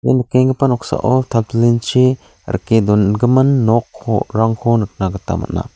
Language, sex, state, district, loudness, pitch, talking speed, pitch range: Garo, male, Meghalaya, South Garo Hills, -15 LUFS, 115 Hz, 125 wpm, 105-130 Hz